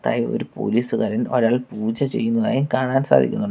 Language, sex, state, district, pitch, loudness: Malayalam, male, Kerala, Kollam, 135 Hz, -21 LUFS